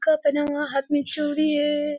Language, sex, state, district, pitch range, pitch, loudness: Hindi, female, Bihar, Kishanganj, 290-300 Hz, 295 Hz, -23 LUFS